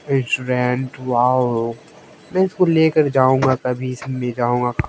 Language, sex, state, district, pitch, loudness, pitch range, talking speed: Hindi, male, Haryana, Jhajjar, 130 Hz, -18 LUFS, 125-140 Hz, 160 wpm